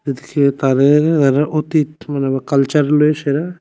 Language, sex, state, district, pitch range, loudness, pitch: Bengali, male, Tripura, West Tripura, 140-155 Hz, -15 LUFS, 145 Hz